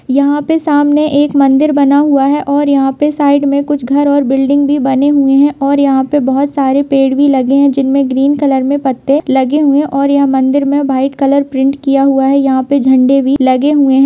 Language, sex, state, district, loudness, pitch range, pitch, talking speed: Hindi, female, Bihar, Kishanganj, -10 LUFS, 270-285 Hz, 280 Hz, 235 wpm